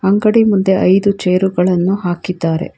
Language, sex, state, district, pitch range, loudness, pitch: Kannada, female, Karnataka, Bangalore, 180-200 Hz, -14 LUFS, 190 Hz